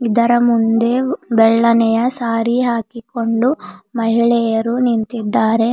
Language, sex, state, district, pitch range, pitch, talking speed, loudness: Kannada, female, Karnataka, Bidar, 225-240 Hz, 230 Hz, 75 wpm, -15 LUFS